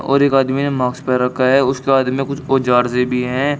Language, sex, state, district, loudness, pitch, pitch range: Hindi, male, Uttar Pradesh, Shamli, -16 LUFS, 135 Hz, 125-135 Hz